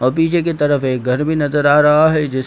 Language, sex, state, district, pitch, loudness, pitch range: Hindi, male, Jharkhand, Sahebganj, 145 Hz, -14 LUFS, 130-155 Hz